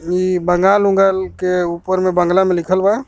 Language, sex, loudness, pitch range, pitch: Bhojpuri, male, -15 LUFS, 180-190 Hz, 185 Hz